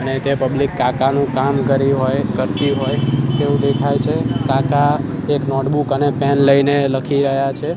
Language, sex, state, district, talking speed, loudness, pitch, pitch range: Gujarati, male, Gujarat, Gandhinagar, 160 wpm, -17 LUFS, 140 Hz, 135-140 Hz